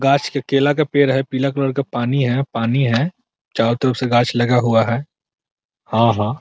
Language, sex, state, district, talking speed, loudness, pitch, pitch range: Hindi, male, Bihar, Muzaffarpur, 215 wpm, -18 LUFS, 130 Hz, 120-140 Hz